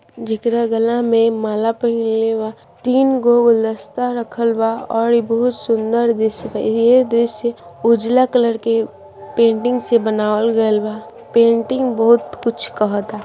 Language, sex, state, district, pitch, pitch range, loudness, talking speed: Bhojpuri, male, Bihar, Saran, 230 Hz, 225-235 Hz, -16 LUFS, 140 wpm